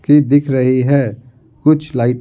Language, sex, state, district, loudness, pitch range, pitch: Hindi, male, Bihar, Patna, -14 LUFS, 125-145 Hz, 130 Hz